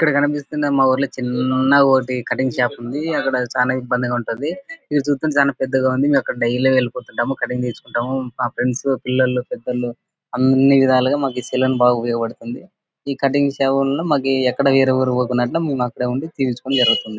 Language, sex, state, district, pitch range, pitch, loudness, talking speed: Telugu, male, Andhra Pradesh, Anantapur, 125-140 Hz, 130 Hz, -18 LUFS, 135 wpm